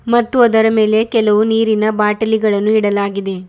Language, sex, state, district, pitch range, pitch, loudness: Kannada, female, Karnataka, Bidar, 210-225 Hz, 215 Hz, -14 LUFS